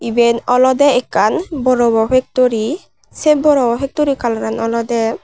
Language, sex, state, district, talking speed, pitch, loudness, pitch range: Chakma, female, Tripura, West Tripura, 115 wpm, 250 Hz, -15 LUFS, 230-280 Hz